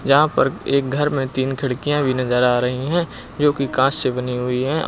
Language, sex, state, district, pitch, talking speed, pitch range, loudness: Hindi, male, Uttar Pradesh, Lucknow, 135 Hz, 245 wpm, 125-140 Hz, -19 LUFS